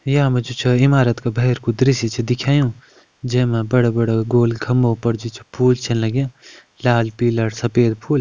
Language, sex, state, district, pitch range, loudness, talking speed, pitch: Kumaoni, male, Uttarakhand, Uttarkashi, 115-125 Hz, -18 LUFS, 195 wpm, 120 Hz